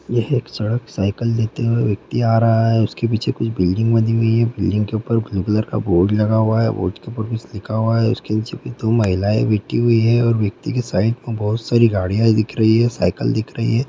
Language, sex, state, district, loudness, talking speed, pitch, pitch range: Hindi, male, Bihar, Gopalganj, -18 LUFS, 245 wpm, 115 Hz, 105-115 Hz